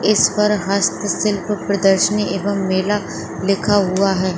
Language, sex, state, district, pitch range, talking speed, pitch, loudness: Hindi, female, Jharkhand, Sahebganj, 190-205 Hz, 150 wpm, 200 Hz, -17 LUFS